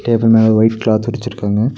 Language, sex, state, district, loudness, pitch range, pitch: Tamil, male, Tamil Nadu, Nilgiris, -14 LUFS, 110-115 Hz, 110 Hz